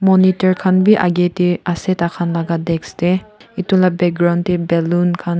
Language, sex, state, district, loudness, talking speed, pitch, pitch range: Nagamese, female, Nagaland, Kohima, -16 LUFS, 180 wpm, 175 Hz, 170-185 Hz